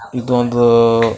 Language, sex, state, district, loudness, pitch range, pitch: Kannada, male, Karnataka, Bijapur, -13 LUFS, 115-125 Hz, 120 Hz